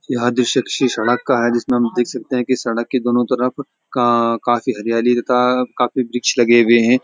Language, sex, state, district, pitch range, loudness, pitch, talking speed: Hindi, male, Uttarakhand, Uttarkashi, 120-125 Hz, -17 LUFS, 125 Hz, 215 wpm